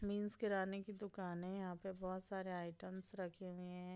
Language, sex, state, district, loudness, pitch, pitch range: Hindi, female, Bihar, Gopalganj, -46 LUFS, 190 Hz, 180-200 Hz